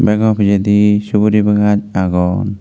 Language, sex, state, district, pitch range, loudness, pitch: Chakma, male, Tripura, West Tripura, 100-105 Hz, -13 LUFS, 105 Hz